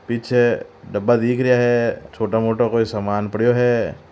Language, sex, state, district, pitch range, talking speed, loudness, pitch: Marwari, male, Rajasthan, Churu, 110-120 Hz, 160 wpm, -19 LUFS, 120 Hz